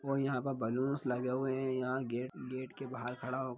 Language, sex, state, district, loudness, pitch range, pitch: Hindi, male, Bihar, Jahanabad, -37 LUFS, 125-135 Hz, 130 Hz